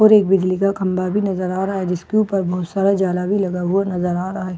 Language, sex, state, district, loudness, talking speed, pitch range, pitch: Hindi, female, Bihar, Katihar, -19 LUFS, 290 wpm, 180-195 Hz, 190 Hz